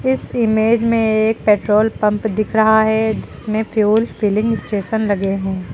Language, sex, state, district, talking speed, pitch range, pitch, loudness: Hindi, female, Uttar Pradesh, Lucknow, 155 wpm, 210-225 Hz, 220 Hz, -16 LUFS